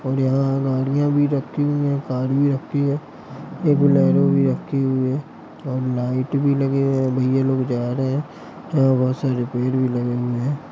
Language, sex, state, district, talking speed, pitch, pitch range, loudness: Hindi, male, Bihar, Gopalganj, 195 wpm, 135 Hz, 130-140 Hz, -20 LUFS